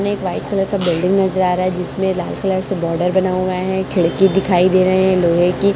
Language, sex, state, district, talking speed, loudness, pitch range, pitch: Hindi, female, Chhattisgarh, Raipur, 250 wpm, -16 LUFS, 180-190 Hz, 185 Hz